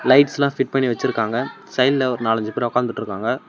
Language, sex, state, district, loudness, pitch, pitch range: Tamil, male, Tamil Nadu, Namakkal, -20 LUFS, 130 Hz, 120-135 Hz